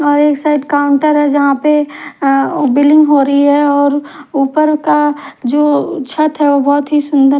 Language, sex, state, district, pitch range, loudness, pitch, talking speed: Hindi, female, Himachal Pradesh, Shimla, 285-295 Hz, -12 LUFS, 290 Hz, 180 wpm